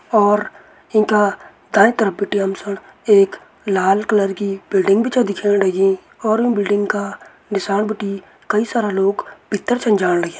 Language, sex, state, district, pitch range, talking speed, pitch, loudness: Garhwali, male, Uttarakhand, Tehri Garhwal, 195-210 Hz, 160 wpm, 205 Hz, -18 LUFS